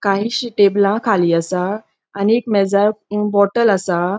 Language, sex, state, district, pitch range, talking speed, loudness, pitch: Konkani, female, Goa, North and South Goa, 195-215 Hz, 130 wpm, -16 LUFS, 200 Hz